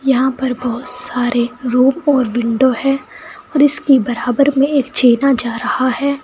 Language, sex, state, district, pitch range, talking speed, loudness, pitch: Hindi, female, Uttar Pradesh, Saharanpur, 245-275 Hz, 145 wpm, -15 LUFS, 255 Hz